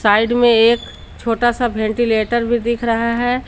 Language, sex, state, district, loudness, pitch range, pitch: Hindi, female, Jharkhand, Garhwa, -16 LUFS, 230-240 Hz, 235 Hz